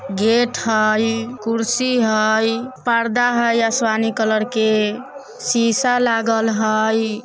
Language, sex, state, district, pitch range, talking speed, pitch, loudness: Bajjika, male, Bihar, Vaishali, 220-240 Hz, 100 wpm, 225 Hz, -18 LUFS